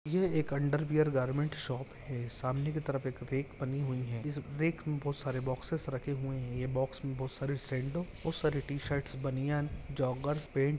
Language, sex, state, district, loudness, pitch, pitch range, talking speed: Hindi, male, Jharkhand, Jamtara, -35 LUFS, 140 Hz, 130-150 Hz, 190 wpm